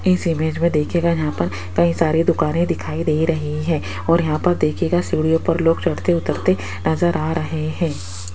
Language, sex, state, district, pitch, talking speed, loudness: Hindi, female, Rajasthan, Jaipur, 160 Hz, 185 wpm, -19 LUFS